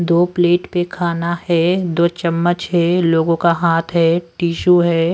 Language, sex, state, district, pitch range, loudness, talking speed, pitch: Hindi, male, Delhi, New Delhi, 170-175 Hz, -16 LUFS, 165 wpm, 170 Hz